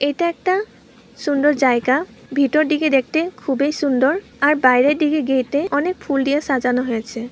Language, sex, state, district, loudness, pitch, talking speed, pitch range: Bengali, female, West Bengal, Purulia, -18 LUFS, 285 Hz, 165 wpm, 260-305 Hz